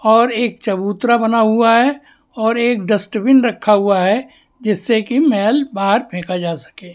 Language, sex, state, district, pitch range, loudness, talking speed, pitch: Hindi, male, Maharashtra, Mumbai Suburban, 200-240 Hz, -15 LUFS, 165 wpm, 225 Hz